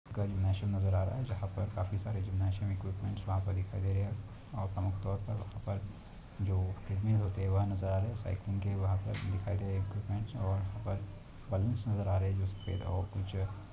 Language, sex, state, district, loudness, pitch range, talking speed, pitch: Hindi, male, Maharashtra, Pune, -36 LUFS, 95-100 Hz, 235 wpm, 100 Hz